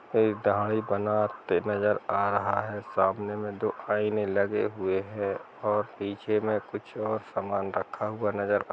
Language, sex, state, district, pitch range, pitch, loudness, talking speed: Hindi, male, Bihar, East Champaran, 100-105 Hz, 105 Hz, -29 LUFS, 150 wpm